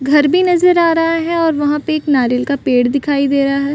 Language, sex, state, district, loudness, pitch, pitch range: Hindi, female, Bihar, Saran, -14 LUFS, 295 Hz, 275-330 Hz